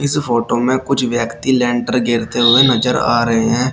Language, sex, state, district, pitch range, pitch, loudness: Hindi, male, Uttar Pradesh, Shamli, 120-130 Hz, 120 Hz, -15 LUFS